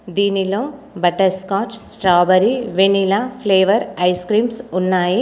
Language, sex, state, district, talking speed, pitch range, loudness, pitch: Telugu, female, Telangana, Komaram Bheem, 105 wpm, 185-220 Hz, -17 LUFS, 195 Hz